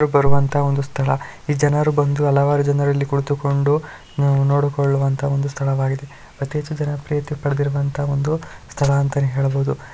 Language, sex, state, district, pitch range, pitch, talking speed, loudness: Kannada, male, Karnataka, Shimoga, 140-145 Hz, 140 Hz, 125 wpm, -20 LUFS